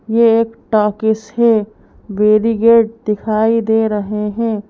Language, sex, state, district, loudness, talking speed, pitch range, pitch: Hindi, female, Madhya Pradesh, Bhopal, -14 LUFS, 115 wpm, 210-230 Hz, 220 Hz